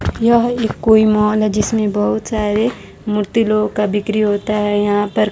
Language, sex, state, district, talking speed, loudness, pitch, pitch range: Hindi, female, Bihar, West Champaran, 170 wpm, -16 LUFS, 210 Hz, 205-220 Hz